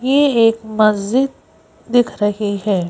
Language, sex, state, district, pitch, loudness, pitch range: Hindi, female, Madhya Pradesh, Bhopal, 220 Hz, -16 LUFS, 205-245 Hz